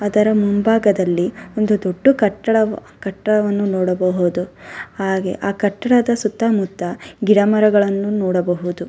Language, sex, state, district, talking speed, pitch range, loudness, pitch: Kannada, female, Karnataka, Dharwad, 100 wpm, 185-215 Hz, -17 LUFS, 205 Hz